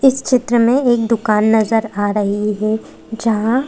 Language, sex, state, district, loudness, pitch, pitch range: Hindi, female, Madhya Pradesh, Bhopal, -16 LUFS, 225 Hz, 215-240 Hz